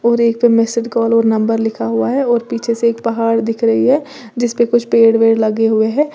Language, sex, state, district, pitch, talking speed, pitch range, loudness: Hindi, female, Uttar Pradesh, Lalitpur, 230 Hz, 245 wpm, 225-235 Hz, -14 LUFS